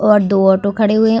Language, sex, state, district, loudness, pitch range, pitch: Hindi, female, Bihar, Vaishali, -13 LUFS, 195-215 Hz, 210 Hz